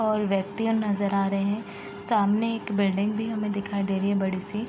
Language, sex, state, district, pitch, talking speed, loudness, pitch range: Hindi, female, Bihar, East Champaran, 205 Hz, 205 wpm, -26 LUFS, 195-215 Hz